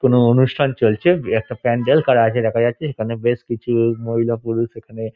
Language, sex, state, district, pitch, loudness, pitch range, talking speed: Bengali, male, West Bengal, Dakshin Dinajpur, 120 Hz, -18 LUFS, 115-125 Hz, 200 wpm